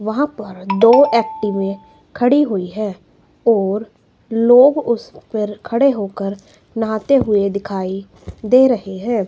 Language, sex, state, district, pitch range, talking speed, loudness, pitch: Hindi, female, Himachal Pradesh, Shimla, 200-245 Hz, 125 wpm, -16 LUFS, 220 Hz